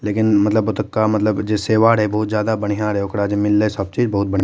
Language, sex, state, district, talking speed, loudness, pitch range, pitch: Maithili, male, Bihar, Madhepura, 245 wpm, -18 LUFS, 105-110 Hz, 105 Hz